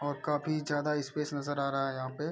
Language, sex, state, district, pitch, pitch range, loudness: Hindi, male, Bihar, Araria, 145 Hz, 140-150 Hz, -33 LUFS